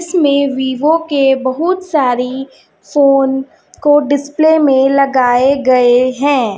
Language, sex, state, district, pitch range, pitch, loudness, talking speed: Hindi, female, Chhattisgarh, Raipur, 260-290 Hz, 275 Hz, -12 LUFS, 110 wpm